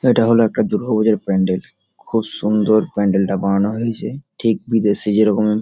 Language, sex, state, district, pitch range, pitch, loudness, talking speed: Bengali, male, West Bengal, Dakshin Dinajpur, 100-115 Hz, 105 Hz, -17 LUFS, 160 wpm